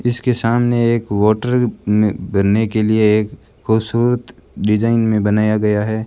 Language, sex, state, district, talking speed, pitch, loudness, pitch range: Hindi, male, Rajasthan, Bikaner, 150 wpm, 110 Hz, -16 LUFS, 105-120 Hz